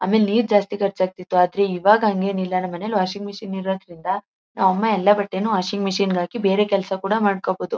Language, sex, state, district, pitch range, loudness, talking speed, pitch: Kannada, female, Karnataka, Mysore, 185-205 Hz, -21 LUFS, 185 wpm, 195 Hz